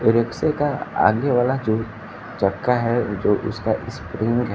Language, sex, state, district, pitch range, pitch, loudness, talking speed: Hindi, male, Bihar, Kaimur, 110-125 Hz, 115 Hz, -21 LUFS, 145 wpm